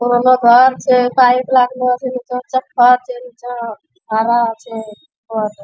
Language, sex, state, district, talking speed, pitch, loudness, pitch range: Angika, female, Bihar, Bhagalpur, 140 wpm, 250 Hz, -14 LUFS, 235-255 Hz